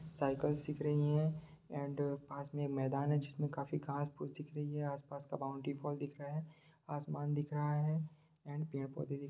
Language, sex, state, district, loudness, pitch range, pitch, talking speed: Hindi, male, Bihar, Sitamarhi, -40 LUFS, 140-150 Hz, 145 Hz, 200 wpm